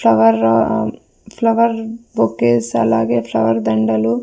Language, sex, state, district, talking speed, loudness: Telugu, female, Andhra Pradesh, Sri Satya Sai, 85 wpm, -16 LUFS